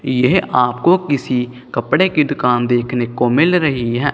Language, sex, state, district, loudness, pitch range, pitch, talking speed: Hindi, male, Punjab, Kapurthala, -16 LUFS, 125-150 Hz, 125 Hz, 160 wpm